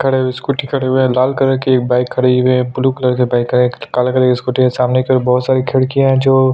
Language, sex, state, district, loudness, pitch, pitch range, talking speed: Hindi, male, Chhattisgarh, Sukma, -14 LUFS, 130 Hz, 125-130 Hz, 265 wpm